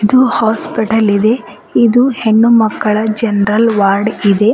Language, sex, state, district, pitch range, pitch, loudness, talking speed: Kannada, female, Karnataka, Bidar, 210-230 Hz, 220 Hz, -12 LUFS, 120 wpm